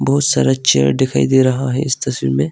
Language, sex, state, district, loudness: Hindi, male, Arunachal Pradesh, Longding, -15 LUFS